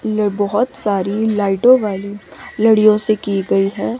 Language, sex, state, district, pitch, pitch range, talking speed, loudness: Hindi, female, Chandigarh, Chandigarh, 210 Hz, 200-220 Hz, 150 wpm, -16 LUFS